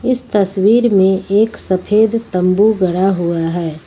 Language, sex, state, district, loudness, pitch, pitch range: Hindi, female, Uttar Pradesh, Lucknow, -14 LUFS, 195 Hz, 180-220 Hz